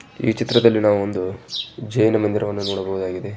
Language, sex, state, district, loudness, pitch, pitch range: Kannada, male, Karnataka, Chamarajanagar, -20 LUFS, 105 Hz, 100-110 Hz